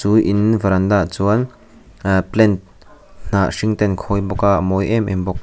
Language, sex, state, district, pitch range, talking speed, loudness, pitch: Mizo, male, Mizoram, Aizawl, 95-110 Hz, 210 wpm, -17 LUFS, 100 Hz